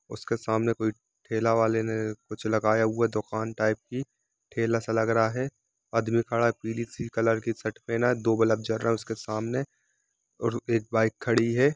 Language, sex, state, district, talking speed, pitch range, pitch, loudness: Hindi, male, Jharkhand, Jamtara, 215 wpm, 110-115 Hz, 115 Hz, -27 LUFS